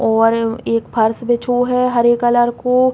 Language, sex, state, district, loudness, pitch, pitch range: Bundeli, female, Uttar Pradesh, Hamirpur, -15 LUFS, 240 Hz, 230-245 Hz